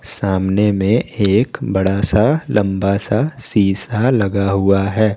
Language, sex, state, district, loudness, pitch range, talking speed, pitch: Hindi, male, Jharkhand, Garhwa, -16 LUFS, 100-110 Hz, 130 wpm, 100 Hz